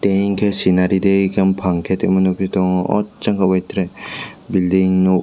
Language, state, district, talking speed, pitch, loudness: Kokborok, Tripura, West Tripura, 170 wpm, 95 Hz, -17 LUFS